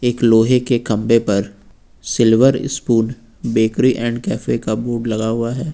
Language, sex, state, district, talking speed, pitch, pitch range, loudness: Hindi, male, Uttar Pradesh, Lucknow, 155 wpm, 115 Hz, 110-120 Hz, -17 LUFS